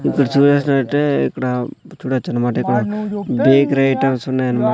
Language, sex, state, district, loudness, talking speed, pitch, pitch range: Telugu, male, Andhra Pradesh, Sri Satya Sai, -17 LUFS, 125 wpm, 135 Hz, 130-145 Hz